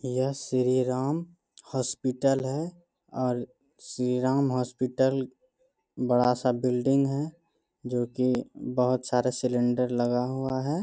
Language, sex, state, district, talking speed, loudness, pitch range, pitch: Hindi, male, Bihar, Bhagalpur, 115 wpm, -27 LUFS, 125-135 Hz, 130 Hz